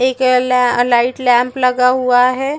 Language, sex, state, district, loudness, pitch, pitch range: Hindi, female, Chhattisgarh, Bastar, -13 LUFS, 250 Hz, 245-255 Hz